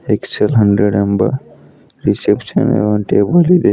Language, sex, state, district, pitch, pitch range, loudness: Kannada, female, Karnataka, Bidar, 105 Hz, 100-130 Hz, -14 LUFS